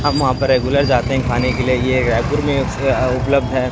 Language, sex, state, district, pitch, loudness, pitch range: Hindi, male, Chhattisgarh, Raipur, 130 Hz, -16 LUFS, 125-140 Hz